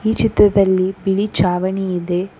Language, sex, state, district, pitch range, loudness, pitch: Kannada, female, Karnataka, Koppal, 180-195 Hz, -16 LUFS, 190 Hz